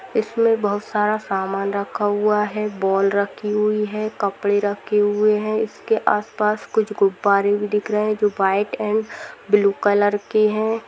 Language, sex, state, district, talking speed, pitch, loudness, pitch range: Hindi, female, Bihar, Gopalganj, 170 wpm, 210 Hz, -20 LUFS, 205-215 Hz